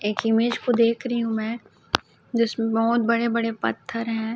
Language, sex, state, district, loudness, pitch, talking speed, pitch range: Hindi, female, Chhattisgarh, Raipur, -24 LUFS, 230 Hz, 180 wpm, 225-235 Hz